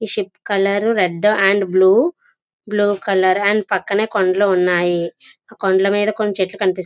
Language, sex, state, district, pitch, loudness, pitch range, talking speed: Telugu, female, Andhra Pradesh, Visakhapatnam, 200 Hz, -17 LUFS, 190-210 Hz, 140 wpm